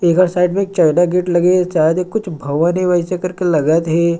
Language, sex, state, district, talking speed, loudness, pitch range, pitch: Chhattisgarhi, male, Chhattisgarh, Sarguja, 240 wpm, -15 LUFS, 170-180 Hz, 175 Hz